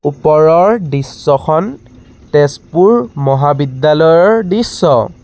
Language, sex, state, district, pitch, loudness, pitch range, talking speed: Assamese, male, Assam, Sonitpur, 150 Hz, -11 LUFS, 140-165 Hz, 55 wpm